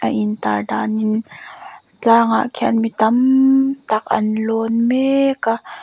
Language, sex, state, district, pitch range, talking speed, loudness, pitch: Mizo, female, Mizoram, Aizawl, 215-260 Hz, 145 wpm, -17 LUFS, 225 Hz